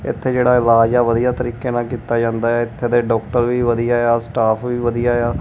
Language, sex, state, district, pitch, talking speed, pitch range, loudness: Punjabi, male, Punjab, Kapurthala, 120 Hz, 235 wpm, 115-120 Hz, -17 LUFS